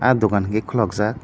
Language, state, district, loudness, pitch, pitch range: Kokborok, Tripura, Dhalai, -20 LUFS, 110 Hz, 105-120 Hz